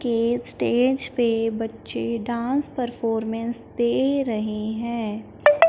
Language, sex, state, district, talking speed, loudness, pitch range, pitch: Hindi, female, Punjab, Fazilka, 95 wpm, -24 LUFS, 225-250 Hz, 235 Hz